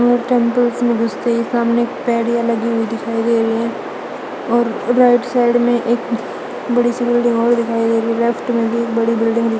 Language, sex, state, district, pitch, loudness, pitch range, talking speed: Hindi, female, Chandigarh, Chandigarh, 235 Hz, -16 LUFS, 230-240 Hz, 185 wpm